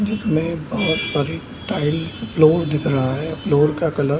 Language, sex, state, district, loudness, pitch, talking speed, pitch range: Hindi, male, Bihar, Samastipur, -20 LUFS, 155 Hz, 170 wpm, 145-165 Hz